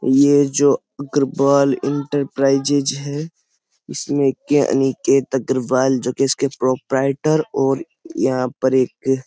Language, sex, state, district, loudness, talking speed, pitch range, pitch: Hindi, male, Uttar Pradesh, Jyotiba Phule Nagar, -18 LUFS, 115 wpm, 130-145 Hz, 135 Hz